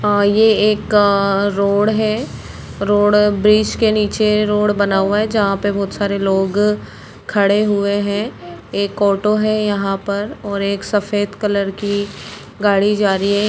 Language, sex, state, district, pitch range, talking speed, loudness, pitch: Hindi, female, Bihar, Gopalganj, 200-210 Hz, 160 wpm, -16 LUFS, 205 Hz